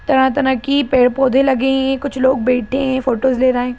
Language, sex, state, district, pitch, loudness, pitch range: Hindi, female, Bihar, Jahanabad, 265 Hz, -15 LUFS, 255-270 Hz